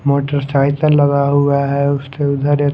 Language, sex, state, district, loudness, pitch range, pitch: Hindi, male, Haryana, Rohtak, -15 LUFS, 140-145 Hz, 140 Hz